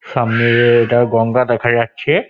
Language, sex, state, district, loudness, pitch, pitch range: Bengali, male, West Bengal, Dakshin Dinajpur, -14 LUFS, 120 Hz, 115-120 Hz